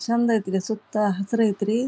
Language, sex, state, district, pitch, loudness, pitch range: Kannada, female, Karnataka, Dharwad, 220 Hz, -23 LUFS, 205-230 Hz